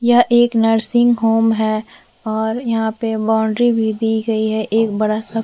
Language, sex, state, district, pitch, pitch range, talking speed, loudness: Hindi, female, Chhattisgarh, Korba, 225 Hz, 220-230 Hz, 190 wpm, -16 LUFS